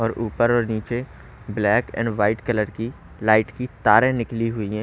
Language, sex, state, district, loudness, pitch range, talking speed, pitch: Hindi, male, Haryana, Rohtak, -22 LUFS, 110-120 Hz, 185 wpm, 115 Hz